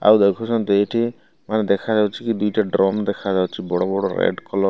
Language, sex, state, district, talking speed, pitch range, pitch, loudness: Odia, male, Odisha, Malkangiri, 190 wpm, 100-110 Hz, 100 Hz, -20 LUFS